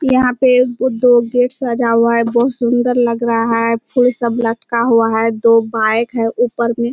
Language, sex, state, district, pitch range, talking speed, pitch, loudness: Hindi, female, Bihar, Kishanganj, 230-245 Hz, 200 wpm, 235 Hz, -14 LUFS